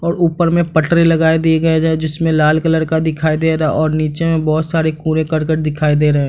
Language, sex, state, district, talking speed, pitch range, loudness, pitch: Hindi, male, Bihar, Madhepura, 240 wpm, 155-165 Hz, -15 LUFS, 160 Hz